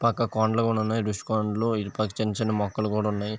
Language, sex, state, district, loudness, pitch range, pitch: Telugu, male, Andhra Pradesh, Visakhapatnam, -26 LUFS, 105-115 Hz, 110 Hz